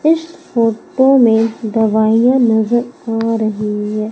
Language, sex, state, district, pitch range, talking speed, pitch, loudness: Hindi, female, Madhya Pradesh, Umaria, 220-250 Hz, 115 wpm, 225 Hz, -14 LUFS